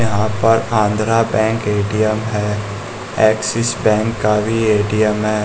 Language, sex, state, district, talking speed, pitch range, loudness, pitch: Hindi, male, Bihar, West Champaran, 130 wpm, 105-115 Hz, -16 LUFS, 110 Hz